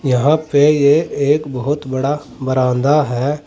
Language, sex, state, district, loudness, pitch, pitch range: Hindi, male, Uttar Pradesh, Saharanpur, -15 LUFS, 145 Hz, 130-150 Hz